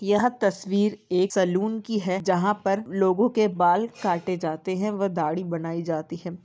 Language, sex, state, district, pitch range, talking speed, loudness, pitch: Hindi, female, Uttarakhand, Uttarkashi, 175-210 Hz, 175 wpm, -25 LUFS, 190 Hz